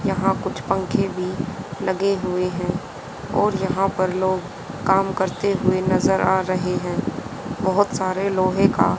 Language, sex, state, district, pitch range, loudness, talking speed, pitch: Hindi, female, Haryana, Jhajjar, 185-195 Hz, -22 LUFS, 145 wpm, 190 Hz